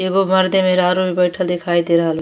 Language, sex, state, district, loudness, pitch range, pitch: Bhojpuri, female, Uttar Pradesh, Deoria, -16 LUFS, 175-185 Hz, 180 Hz